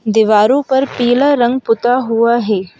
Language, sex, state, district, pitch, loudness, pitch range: Hindi, female, Madhya Pradesh, Bhopal, 240 Hz, -13 LUFS, 220-260 Hz